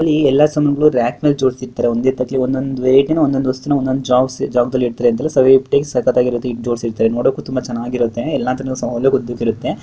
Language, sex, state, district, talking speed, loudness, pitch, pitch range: Kannada, male, Karnataka, Dharwad, 100 wpm, -16 LUFS, 130 Hz, 120-135 Hz